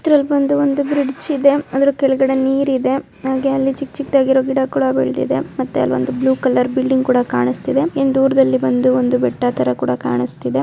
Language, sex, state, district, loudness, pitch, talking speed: Kannada, female, Karnataka, Dharwad, -16 LUFS, 265 Hz, 180 wpm